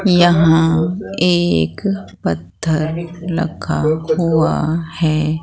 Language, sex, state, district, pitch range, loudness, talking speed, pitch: Hindi, female, Bihar, Katihar, 155-170 Hz, -16 LUFS, 65 wpm, 160 Hz